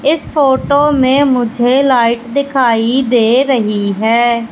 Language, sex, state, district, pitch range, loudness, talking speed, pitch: Hindi, female, Madhya Pradesh, Katni, 235-275 Hz, -12 LUFS, 120 wpm, 250 Hz